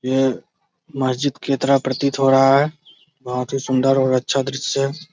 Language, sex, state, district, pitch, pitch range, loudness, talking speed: Hindi, male, Bihar, Araria, 135 Hz, 130-140 Hz, -19 LUFS, 175 wpm